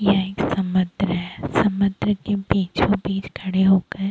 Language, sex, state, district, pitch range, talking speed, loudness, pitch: Hindi, female, Chhattisgarh, Bilaspur, 185-200 Hz, 175 wpm, -21 LUFS, 195 Hz